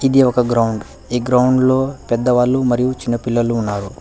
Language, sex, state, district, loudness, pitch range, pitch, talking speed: Telugu, male, Telangana, Hyderabad, -16 LUFS, 120-130 Hz, 125 Hz, 165 wpm